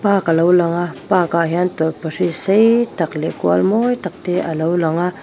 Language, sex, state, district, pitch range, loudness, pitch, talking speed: Mizo, female, Mizoram, Aizawl, 165-185 Hz, -17 LUFS, 175 Hz, 205 wpm